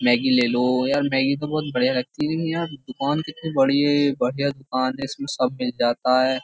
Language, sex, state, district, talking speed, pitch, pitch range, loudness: Hindi, male, Uttar Pradesh, Jyotiba Phule Nagar, 215 wpm, 135 Hz, 125-145 Hz, -22 LUFS